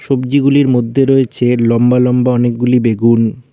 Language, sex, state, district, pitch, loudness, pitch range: Bengali, male, West Bengal, Cooch Behar, 125 Hz, -12 LUFS, 120-135 Hz